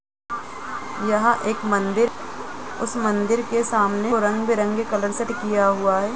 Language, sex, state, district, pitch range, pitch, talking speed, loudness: Hindi, female, Uttar Pradesh, Jalaun, 205-230 Hz, 215 Hz, 135 wpm, -22 LUFS